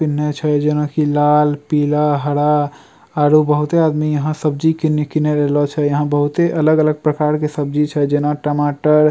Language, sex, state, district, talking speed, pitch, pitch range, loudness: Angika, male, Bihar, Bhagalpur, 180 wpm, 150 Hz, 145-150 Hz, -16 LUFS